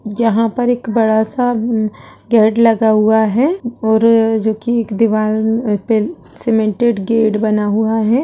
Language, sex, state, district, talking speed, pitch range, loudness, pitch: Hindi, female, Uttar Pradesh, Budaun, 140 wpm, 220-230 Hz, -14 LUFS, 225 Hz